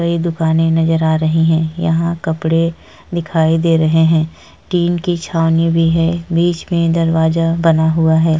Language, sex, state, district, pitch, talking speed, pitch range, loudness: Hindi, female, Uttar Pradesh, Etah, 165 Hz, 165 wpm, 160-170 Hz, -15 LUFS